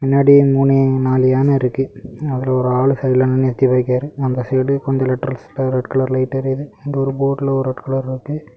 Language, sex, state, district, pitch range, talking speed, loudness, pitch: Tamil, male, Tamil Nadu, Kanyakumari, 130-135 Hz, 180 wpm, -17 LUFS, 130 Hz